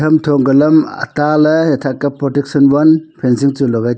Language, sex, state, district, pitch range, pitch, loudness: Wancho, male, Arunachal Pradesh, Longding, 135-155 Hz, 145 Hz, -12 LUFS